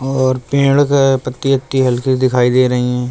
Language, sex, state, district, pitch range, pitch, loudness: Hindi, male, Uttar Pradesh, Jalaun, 125-135 Hz, 130 Hz, -14 LUFS